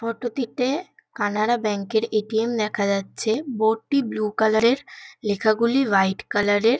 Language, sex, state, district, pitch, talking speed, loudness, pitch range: Bengali, female, West Bengal, Kolkata, 220 Hz, 170 wpm, -22 LUFS, 210-240 Hz